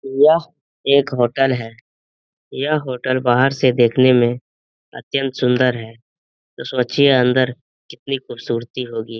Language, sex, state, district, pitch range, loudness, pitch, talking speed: Hindi, male, Bihar, Jamui, 120-135 Hz, -17 LUFS, 125 Hz, 125 wpm